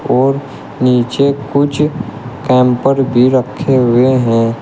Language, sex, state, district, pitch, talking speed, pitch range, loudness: Hindi, male, Uttar Pradesh, Shamli, 130 Hz, 105 wpm, 125-140 Hz, -12 LUFS